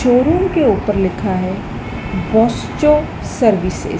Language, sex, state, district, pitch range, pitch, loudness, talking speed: Hindi, female, Madhya Pradesh, Dhar, 195-300 Hz, 240 Hz, -16 LUFS, 120 wpm